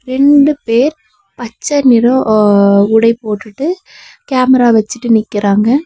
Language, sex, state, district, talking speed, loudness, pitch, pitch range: Tamil, female, Tamil Nadu, Nilgiris, 100 wpm, -11 LUFS, 240 Hz, 220-275 Hz